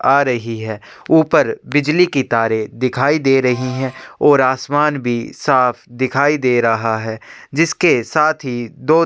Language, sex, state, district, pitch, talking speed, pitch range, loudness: Hindi, male, Chhattisgarh, Sukma, 130 Hz, 160 wpm, 120-145 Hz, -16 LUFS